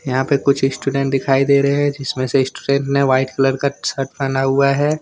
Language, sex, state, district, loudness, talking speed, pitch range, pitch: Hindi, male, Jharkhand, Deoghar, -17 LUFS, 240 wpm, 135-140 Hz, 135 Hz